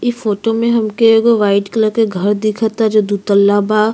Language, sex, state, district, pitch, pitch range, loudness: Bhojpuri, female, Uttar Pradesh, Ghazipur, 215 Hz, 205-225 Hz, -13 LUFS